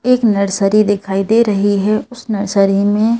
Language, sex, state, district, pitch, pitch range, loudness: Hindi, female, Madhya Pradesh, Bhopal, 205 Hz, 200-225 Hz, -14 LUFS